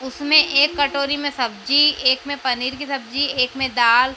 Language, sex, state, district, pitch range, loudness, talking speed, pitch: Hindi, female, Madhya Pradesh, Dhar, 255-285 Hz, -18 LUFS, 200 wpm, 270 Hz